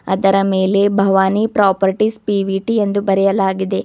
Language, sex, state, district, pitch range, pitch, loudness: Kannada, female, Karnataka, Bidar, 195-205 Hz, 195 Hz, -15 LUFS